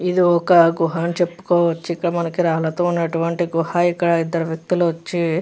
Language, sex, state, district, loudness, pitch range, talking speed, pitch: Telugu, female, Andhra Pradesh, Chittoor, -19 LUFS, 165-175 Hz, 165 wpm, 170 Hz